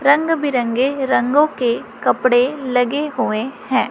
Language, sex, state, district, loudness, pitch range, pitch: Hindi, female, Chhattisgarh, Raipur, -18 LUFS, 245-290 Hz, 265 Hz